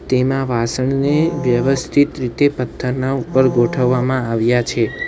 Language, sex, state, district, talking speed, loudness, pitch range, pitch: Gujarati, male, Gujarat, Valsad, 105 wpm, -17 LUFS, 125-135 Hz, 130 Hz